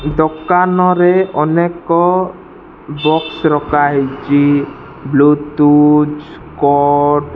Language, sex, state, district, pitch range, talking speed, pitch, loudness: Odia, male, Odisha, Malkangiri, 145-170 Hz, 55 wpm, 150 Hz, -12 LUFS